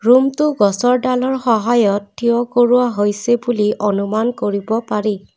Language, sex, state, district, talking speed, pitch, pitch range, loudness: Assamese, female, Assam, Kamrup Metropolitan, 125 wpm, 235 Hz, 205-245 Hz, -16 LUFS